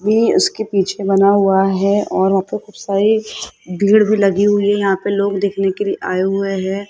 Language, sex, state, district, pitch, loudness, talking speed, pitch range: Hindi, male, Rajasthan, Jaipur, 200 Hz, -15 LUFS, 215 wpm, 195-205 Hz